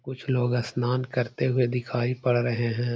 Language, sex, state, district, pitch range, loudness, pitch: Hindi, male, Uttar Pradesh, Hamirpur, 120-125 Hz, -26 LUFS, 125 Hz